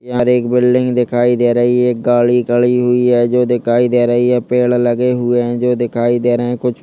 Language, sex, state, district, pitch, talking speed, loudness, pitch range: Hindi, male, Chhattisgarh, Kabirdham, 120 Hz, 245 wpm, -13 LUFS, 120-125 Hz